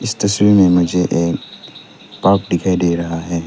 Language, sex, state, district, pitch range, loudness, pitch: Hindi, male, Arunachal Pradesh, Lower Dibang Valley, 85-100 Hz, -15 LUFS, 90 Hz